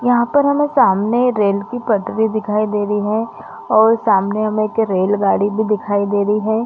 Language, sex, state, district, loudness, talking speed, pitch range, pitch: Hindi, female, Chhattisgarh, Bastar, -16 LUFS, 200 wpm, 205-225 Hz, 215 Hz